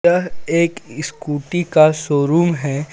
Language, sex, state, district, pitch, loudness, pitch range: Hindi, male, Jharkhand, Ranchi, 155 Hz, -17 LUFS, 150-175 Hz